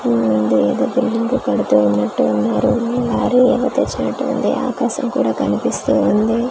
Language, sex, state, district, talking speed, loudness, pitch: Telugu, female, Andhra Pradesh, Manyam, 140 wpm, -17 LUFS, 230 Hz